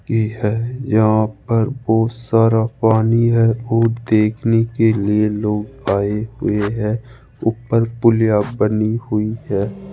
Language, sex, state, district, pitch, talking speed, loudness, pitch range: Hindi, male, Rajasthan, Jaipur, 110 Hz, 125 wpm, -17 LUFS, 105-115 Hz